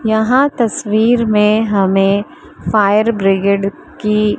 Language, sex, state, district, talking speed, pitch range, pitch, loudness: Hindi, female, Maharashtra, Mumbai Suburban, 95 wpm, 200-220 Hz, 210 Hz, -14 LUFS